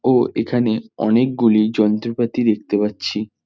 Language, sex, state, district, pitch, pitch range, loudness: Bengali, male, West Bengal, North 24 Parganas, 110 Hz, 105-120 Hz, -18 LUFS